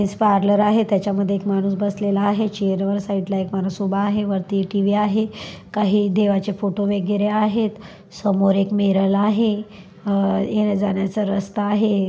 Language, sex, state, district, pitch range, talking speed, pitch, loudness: Marathi, female, Maharashtra, Pune, 195-210 Hz, 175 wpm, 200 Hz, -20 LUFS